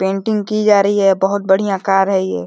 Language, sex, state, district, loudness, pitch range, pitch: Hindi, male, Uttar Pradesh, Deoria, -15 LUFS, 190-205 Hz, 195 Hz